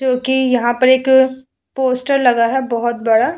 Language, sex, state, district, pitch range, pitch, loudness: Hindi, female, Uttar Pradesh, Hamirpur, 240-265 Hz, 260 Hz, -15 LUFS